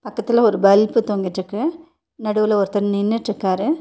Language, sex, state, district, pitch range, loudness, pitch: Tamil, female, Tamil Nadu, Nilgiris, 200-235 Hz, -19 LUFS, 215 Hz